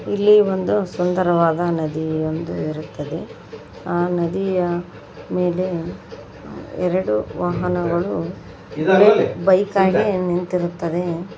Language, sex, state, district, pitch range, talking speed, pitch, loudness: Kannada, female, Karnataka, Koppal, 170-185 Hz, 70 wpm, 180 Hz, -19 LUFS